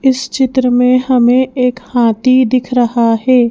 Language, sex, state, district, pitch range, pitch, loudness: Hindi, female, Madhya Pradesh, Bhopal, 245-255 Hz, 250 Hz, -12 LUFS